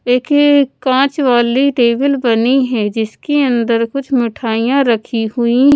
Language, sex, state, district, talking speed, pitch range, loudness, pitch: Hindi, female, Odisha, Nuapada, 135 wpm, 230-275 Hz, -14 LUFS, 250 Hz